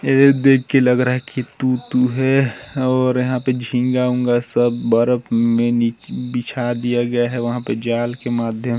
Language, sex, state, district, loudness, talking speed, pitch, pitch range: Hindi, male, Chhattisgarh, Sarguja, -18 LUFS, 190 wpm, 125 Hz, 120-130 Hz